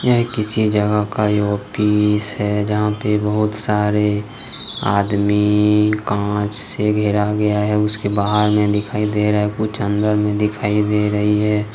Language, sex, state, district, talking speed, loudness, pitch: Hindi, male, Jharkhand, Ranchi, 145 wpm, -18 LUFS, 105 Hz